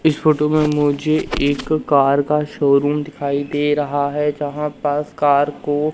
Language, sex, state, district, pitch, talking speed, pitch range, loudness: Hindi, male, Madhya Pradesh, Umaria, 145 Hz, 160 wpm, 145-150 Hz, -18 LUFS